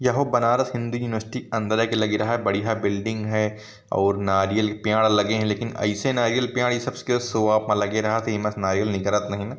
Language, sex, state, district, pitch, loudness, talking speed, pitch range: Hindi, male, Uttar Pradesh, Varanasi, 110 Hz, -23 LUFS, 215 wpm, 105-120 Hz